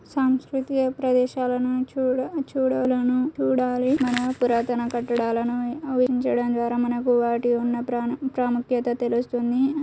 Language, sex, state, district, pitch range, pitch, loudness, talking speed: Telugu, female, Telangana, Karimnagar, 240-260 Hz, 250 Hz, -23 LUFS, 75 wpm